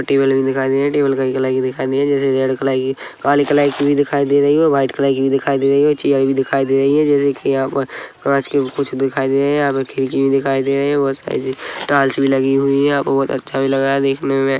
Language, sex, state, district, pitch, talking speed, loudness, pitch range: Hindi, male, Chhattisgarh, Korba, 135 Hz, 315 wpm, -16 LUFS, 135-140 Hz